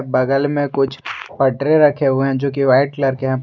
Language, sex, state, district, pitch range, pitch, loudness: Hindi, male, Jharkhand, Garhwa, 135-140 Hz, 135 Hz, -16 LUFS